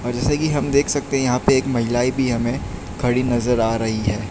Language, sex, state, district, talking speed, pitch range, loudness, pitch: Hindi, male, Gujarat, Valsad, 250 wpm, 115-135 Hz, -20 LUFS, 120 Hz